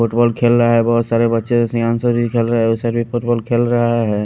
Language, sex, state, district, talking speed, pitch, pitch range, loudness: Hindi, male, Haryana, Rohtak, 270 wpm, 115 Hz, 115-120 Hz, -16 LUFS